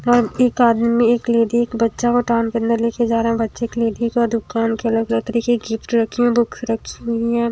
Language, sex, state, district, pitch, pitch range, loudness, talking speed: Hindi, female, Himachal Pradesh, Shimla, 235 Hz, 230-235 Hz, -18 LUFS, 225 wpm